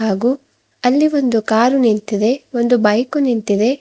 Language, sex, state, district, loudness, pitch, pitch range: Kannada, female, Karnataka, Bidar, -16 LUFS, 240 Hz, 220-260 Hz